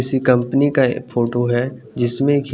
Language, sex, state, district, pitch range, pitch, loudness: Hindi, male, Chandigarh, Chandigarh, 120-135 Hz, 125 Hz, -18 LUFS